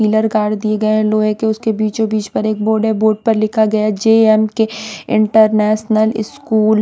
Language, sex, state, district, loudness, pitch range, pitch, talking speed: Hindi, female, Punjab, Pathankot, -14 LUFS, 215-220 Hz, 215 Hz, 195 wpm